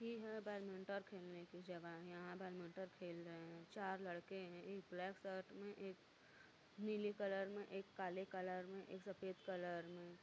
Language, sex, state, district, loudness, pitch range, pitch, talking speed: Hindi, female, Uttar Pradesh, Varanasi, -51 LUFS, 175-195 Hz, 190 Hz, 170 wpm